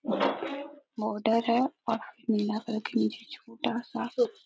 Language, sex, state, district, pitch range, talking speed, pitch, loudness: Hindi, female, Jharkhand, Sahebganj, 220-280 Hz, 65 wpm, 230 Hz, -30 LUFS